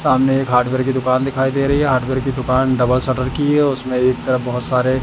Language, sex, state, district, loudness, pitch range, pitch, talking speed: Hindi, male, Madhya Pradesh, Katni, -17 LUFS, 130-135 Hz, 130 Hz, 250 wpm